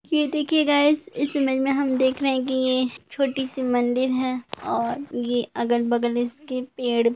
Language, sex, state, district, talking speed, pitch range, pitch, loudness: Hindi, female, Jharkhand, Jamtara, 185 wpm, 245-280 Hz, 260 Hz, -23 LUFS